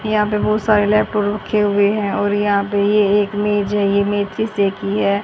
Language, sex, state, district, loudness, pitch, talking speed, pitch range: Hindi, female, Haryana, Rohtak, -17 LUFS, 205 Hz, 230 wpm, 200-210 Hz